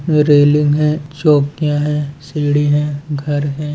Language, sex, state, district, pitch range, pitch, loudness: Hindi, male, Bihar, Sitamarhi, 145-150 Hz, 150 Hz, -15 LUFS